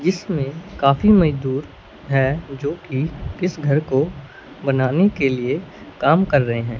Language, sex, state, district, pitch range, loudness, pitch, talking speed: Hindi, male, Punjab, Fazilka, 135-170 Hz, -20 LUFS, 145 Hz, 140 wpm